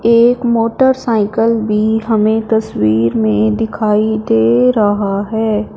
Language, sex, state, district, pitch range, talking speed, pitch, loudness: Hindi, female, Punjab, Fazilka, 205-225 Hz, 105 wpm, 220 Hz, -13 LUFS